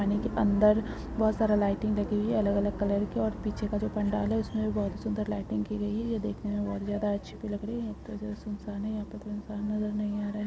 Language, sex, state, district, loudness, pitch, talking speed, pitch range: Hindi, female, Uttar Pradesh, Ghazipur, -30 LUFS, 210 Hz, 285 wpm, 205-215 Hz